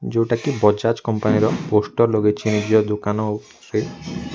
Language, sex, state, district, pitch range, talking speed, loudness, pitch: Odia, male, Odisha, Nuapada, 105-115 Hz, 125 wpm, -20 LUFS, 110 Hz